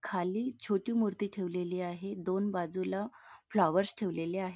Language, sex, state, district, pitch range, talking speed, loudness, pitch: Marathi, female, Maharashtra, Nagpur, 180-200 Hz, 130 wpm, -34 LUFS, 190 Hz